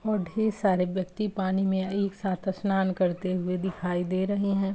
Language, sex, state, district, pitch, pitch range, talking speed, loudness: Hindi, female, Uttar Pradesh, Jalaun, 190 Hz, 185-200 Hz, 190 wpm, -28 LUFS